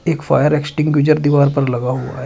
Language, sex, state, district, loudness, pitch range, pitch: Hindi, male, Uttar Pradesh, Shamli, -15 LUFS, 130-150 Hz, 145 Hz